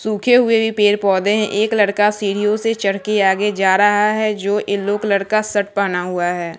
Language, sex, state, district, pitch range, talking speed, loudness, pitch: Hindi, female, Bihar, West Champaran, 200-215 Hz, 210 wpm, -16 LUFS, 205 Hz